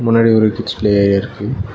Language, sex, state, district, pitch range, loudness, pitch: Tamil, male, Tamil Nadu, Nilgiris, 100-115 Hz, -14 LUFS, 110 Hz